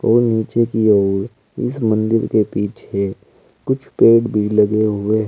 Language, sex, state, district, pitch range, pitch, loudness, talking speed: Hindi, male, Uttar Pradesh, Saharanpur, 105-115 Hz, 110 Hz, -17 LUFS, 160 wpm